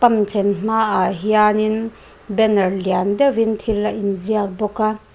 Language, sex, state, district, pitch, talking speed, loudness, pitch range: Mizo, female, Mizoram, Aizawl, 215 Hz, 140 wpm, -18 LUFS, 200-220 Hz